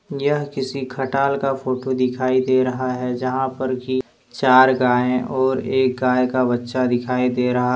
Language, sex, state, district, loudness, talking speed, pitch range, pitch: Hindi, male, Jharkhand, Deoghar, -20 LUFS, 170 wpm, 125-130 Hz, 130 Hz